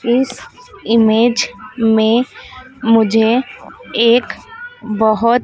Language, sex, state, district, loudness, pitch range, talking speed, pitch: Hindi, female, Madhya Pradesh, Dhar, -14 LUFS, 225-255 Hz, 65 wpm, 235 Hz